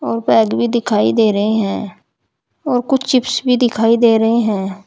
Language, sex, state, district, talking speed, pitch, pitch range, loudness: Hindi, female, Uttar Pradesh, Saharanpur, 185 wpm, 225 Hz, 210-245 Hz, -15 LUFS